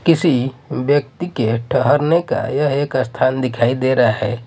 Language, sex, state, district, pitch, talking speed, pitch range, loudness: Hindi, male, Maharashtra, Mumbai Suburban, 130 Hz, 160 wpm, 125-145 Hz, -17 LUFS